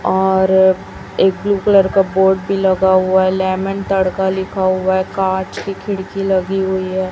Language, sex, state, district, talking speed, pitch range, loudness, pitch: Hindi, female, Chhattisgarh, Raipur, 175 wpm, 190-195 Hz, -15 LUFS, 190 Hz